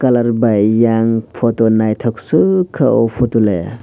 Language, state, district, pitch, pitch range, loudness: Kokborok, Tripura, West Tripura, 115 Hz, 110-120 Hz, -14 LUFS